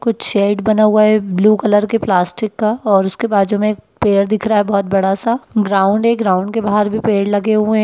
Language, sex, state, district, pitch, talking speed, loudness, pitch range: Hindi, male, Bihar, Lakhisarai, 210 Hz, 235 wpm, -15 LUFS, 200-215 Hz